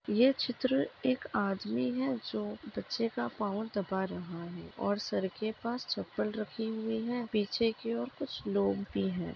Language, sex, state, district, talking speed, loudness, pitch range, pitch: Hindi, female, Maharashtra, Dhule, 175 wpm, -34 LUFS, 190-240 Hz, 215 Hz